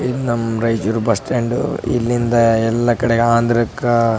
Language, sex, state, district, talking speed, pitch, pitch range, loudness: Kannada, male, Karnataka, Raichur, 145 wpm, 115 Hz, 115-120 Hz, -17 LUFS